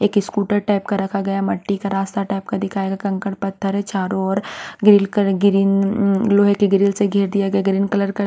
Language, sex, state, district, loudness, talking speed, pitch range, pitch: Hindi, female, Punjab, Pathankot, -18 LUFS, 230 wpm, 195-205 Hz, 200 Hz